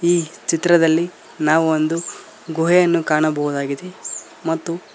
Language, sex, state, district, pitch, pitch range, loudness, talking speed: Kannada, male, Karnataka, Koppal, 165 Hz, 155-170 Hz, -19 LUFS, 85 wpm